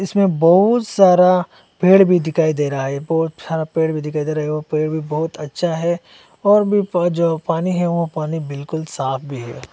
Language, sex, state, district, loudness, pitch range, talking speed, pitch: Hindi, male, Assam, Hailakandi, -17 LUFS, 155-180 Hz, 210 wpm, 160 Hz